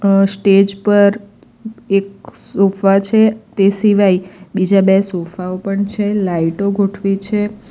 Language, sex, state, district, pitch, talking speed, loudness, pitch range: Gujarati, female, Gujarat, Valsad, 195 Hz, 125 wpm, -14 LUFS, 195-205 Hz